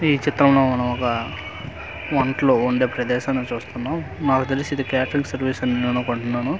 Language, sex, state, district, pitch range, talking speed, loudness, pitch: Telugu, male, Andhra Pradesh, Manyam, 125-135 Hz, 155 wpm, -21 LUFS, 130 Hz